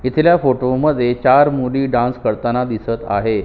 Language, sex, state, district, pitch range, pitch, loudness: Marathi, male, Maharashtra, Sindhudurg, 120-135 Hz, 125 Hz, -16 LUFS